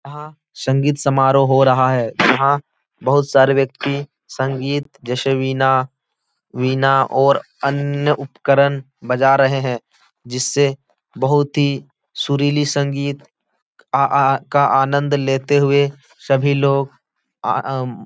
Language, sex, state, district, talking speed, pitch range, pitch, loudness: Hindi, male, Uttar Pradesh, Etah, 125 wpm, 135-140 Hz, 140 Hz, -17 LUFS